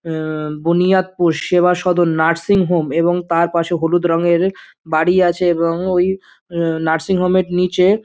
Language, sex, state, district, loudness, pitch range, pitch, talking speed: Bengali, male, West Bengal, Dakshin Dinajpur, -16 LUFS, 165-180 Hz, 175 Hz, 140 wpm